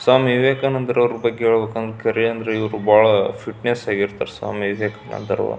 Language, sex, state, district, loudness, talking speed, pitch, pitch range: Kannada, male, Karnataka, Belgaum, -19 LUFS, 120 wpm, 115 Hz, 110-120 Hz